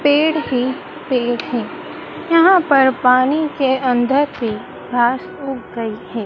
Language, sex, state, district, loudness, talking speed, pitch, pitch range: Hindi, female, Madhya Pradesh, Dhar, -17 LUFS, 135 wpm, 260 Hz, 240-295 Hz